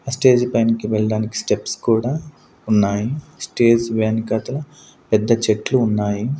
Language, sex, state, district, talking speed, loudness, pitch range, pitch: Telugu, male, Andhra Pradesh, Sri Satya Sai, 115 wpm, -19 LUFS, 110-130 Hz, 115 Hz